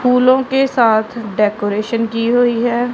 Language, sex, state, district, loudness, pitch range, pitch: Hindi, female, Punjab, Pathankot, -15 LUFS, 220-250 Hz, 235 Hz